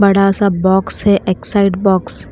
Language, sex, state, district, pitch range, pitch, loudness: Hindi, female, Bihar, Patna, 185-200 Hz, 195 Hz, -14 LUFS